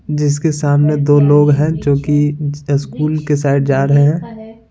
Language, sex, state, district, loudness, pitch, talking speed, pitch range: Hindi, male, Bihar, Patna, -14 LUFS, 145 Hz, 165 wpm, 145-150 Hz